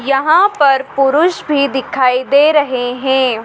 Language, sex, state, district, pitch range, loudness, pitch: Hindi, female, Madhya Pradesh, Dhar, 260-290 Hz, -13 LUFS, 275 Hz